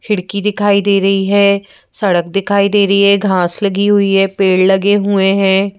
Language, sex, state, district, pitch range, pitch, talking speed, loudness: Hindi, female, Madhya Pradesh, Bhopal, 195-200 Hz, 200 Hz, 185 wpm, -12 LUFS